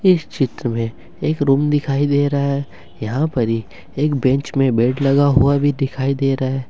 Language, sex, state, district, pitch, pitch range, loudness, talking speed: Hindi, male, Jharkhand, Ranchi, 135 Hz, 120-140 Hz, -18 LUFS, 205 wpm